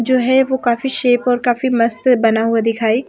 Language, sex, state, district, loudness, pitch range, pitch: Hindi, female, Haryana, Rohtak, -15 LUFS, 230-255 Hz, 245 Hz